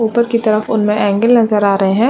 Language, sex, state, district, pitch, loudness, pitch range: Hindi, female, Uttarakhand, Uttarkashi, 215 Hz, -13 LUFS, 205-235 Hz